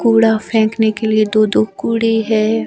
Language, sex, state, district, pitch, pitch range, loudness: Hindi, female, Himachal Pradesh, Shimla, 220 Hz, 215-225 Hz, -15 LUFS